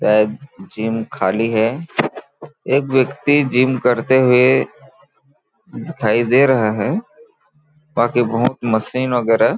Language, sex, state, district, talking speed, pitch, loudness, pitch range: Hindi, male, Chhattisgarh, Balrampur, 115 wpm, 125 Hz, -17 LUFS, 115-140 Hz